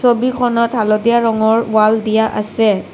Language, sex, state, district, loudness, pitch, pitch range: Assamese, female, Assam, Kamrup Metropolitan, -14 LUFS, 220 Hz, 215-235 Hz